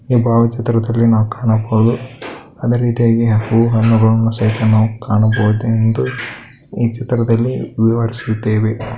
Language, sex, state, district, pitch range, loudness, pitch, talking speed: Kannada, male, Karnataka, Bellary, 110-115 Hz, -15 LUFS, 115 Hz, 85 wpm